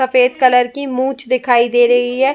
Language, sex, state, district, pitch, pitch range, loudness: Hindi, female, Uttar Pradesh, Jyotiba Phule Nagar, 255 Hz, 245-260 Hz, -14 LUFS